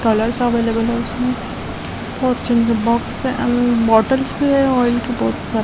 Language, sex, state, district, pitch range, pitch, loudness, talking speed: Hindi, female, Delhi, New Delhi, 230-250 Hz, 240 Hz, -17 LUFS, 180 wpm